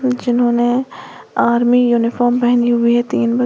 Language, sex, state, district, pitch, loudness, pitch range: Hindi, female, Uttar Pradesh, Lalitpur, 240 Hz, -15 LUFS, 240-245 Hz